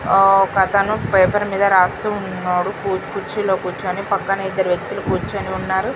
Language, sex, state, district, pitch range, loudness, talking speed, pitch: Telugu, female, Telangana, Karimnagar, 185-200 Hz, -18 LUFS, 120 wpm, 195 Hz